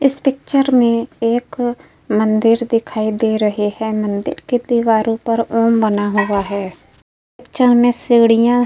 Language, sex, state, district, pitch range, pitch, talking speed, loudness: Hindi, female, Uttar Pradesh, Hamirpur, 215-245 Hz, 230 Hz, 145 wpm, -16 LUFS